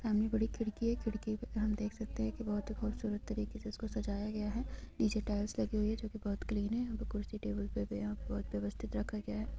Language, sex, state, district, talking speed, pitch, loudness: Hindi, female, Jharkhand, Sahebganj, 245 wpm, 215 Hz, -38 LUFS